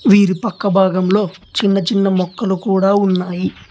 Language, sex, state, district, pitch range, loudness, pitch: Telugu, male, Telangana, Hyderabad, 185-200 Hz, -16 LUFS, 195 Hz